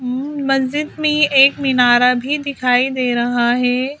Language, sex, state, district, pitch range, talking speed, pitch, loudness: Hindi, female, Madhya Pradesh, Bhopal, 250-280 Hz, 135 wpm, 265 Hz, -15 LUFS